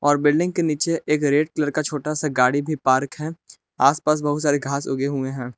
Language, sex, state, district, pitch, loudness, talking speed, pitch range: Hindi, male, Jharkhand, Palamu, 145 Hz, -21 LUFS, 225 wpm, 140-155 Hz